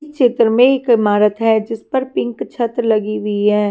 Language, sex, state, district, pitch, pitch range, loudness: Hindi, female, Himachal Pradesh, Shimla, 225 Hz, 210-245 Hz, -15 LUFS